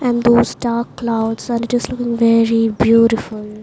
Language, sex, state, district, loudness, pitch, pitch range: English, female, Maharashtra, Mumbai Suburban, -16 LUFS, 230 Hz, 225-235 Hz